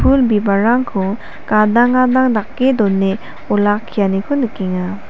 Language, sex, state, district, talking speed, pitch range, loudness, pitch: Garo, female, Meghalaya, South Garo Hills, 95 wpm, 200-250 Hz, -15 LUFS, 215 Hz